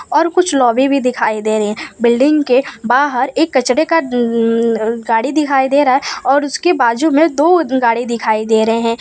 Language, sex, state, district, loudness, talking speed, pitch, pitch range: Hindi, female, Gujarat, Valsad, -14 LUFS, 205 wpm, 255 Hz, 230-290 Hz